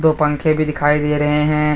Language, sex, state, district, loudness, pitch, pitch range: Hindi, male, Jharkhand, Deoghar, -17 LUFS, 150 Hz, 150-155 Hz